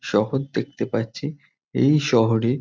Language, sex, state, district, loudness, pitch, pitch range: Bengali, male, West Bengal, North 24 Parganas, -22 LUFS, 130 Hz, 115-145 Hz